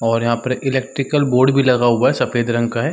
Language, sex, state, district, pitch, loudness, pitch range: Hindi, male, Chhattisgarh, Sarguja, 125 Hz, -17 LUFS, 120-135 Hz